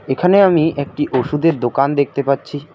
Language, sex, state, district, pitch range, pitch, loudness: Bengali, male, West Bengal, Alipurduar, 140-160 Hz, 145 Hz, -16 LUFS